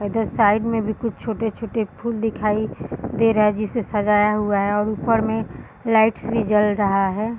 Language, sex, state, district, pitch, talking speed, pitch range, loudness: Hindi, female, Bihar, Bhagalpur, 220 Hz, 195 wpm, 210-225 Hz, -20 LUFS